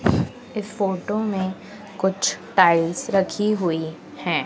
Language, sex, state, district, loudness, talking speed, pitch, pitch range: Hindi, female, Madhya Pradesh, Dhar, -22 LUFS, 110 wpm, 195 Hz, 170-210 Hz